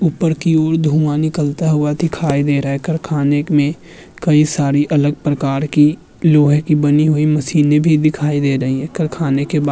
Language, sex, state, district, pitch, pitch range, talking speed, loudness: Hindi, male, Uttar Pradesh, Muzaffarnagar, 150 Hz, 145-155 Hz, 190 wpm, -15 LUFS